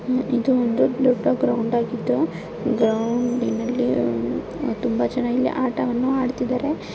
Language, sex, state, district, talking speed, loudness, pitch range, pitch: Kannada, female, Karnataka, Bijapur, 95 wpm, -22 LUFS, 225-255 Hz, 245 Hz